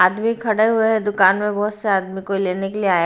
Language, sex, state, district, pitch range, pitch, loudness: Hindi, female, Haryana, Rohtak, 190-220 Hz, 205 Hz, -19 LUFS